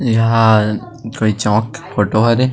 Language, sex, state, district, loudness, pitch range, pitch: Chhattisgarhi, male, Chhattisgarh, Sarguja, -15 LUFS, 105-115 Hz, 115 Hz